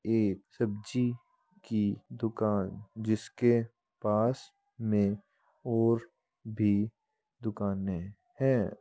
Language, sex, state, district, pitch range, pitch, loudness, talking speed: Hindi, male, Uttar Pradesh, Muzaffarnagar, 105-120 Hz, 110 Hz, -31 LUFS, 75 wpm